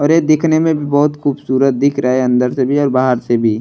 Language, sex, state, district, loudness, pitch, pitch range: Bhojpuri, male, Uttar Pradesh, Deoria, -14 LUFS, 140 Hz, 130-150 Hz